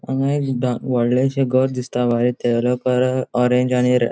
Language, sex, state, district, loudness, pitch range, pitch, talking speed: Konkani, male, Goa, North and South Goa, -19 LUFS, 125-130 Hz, 125 Hz, 190 wpm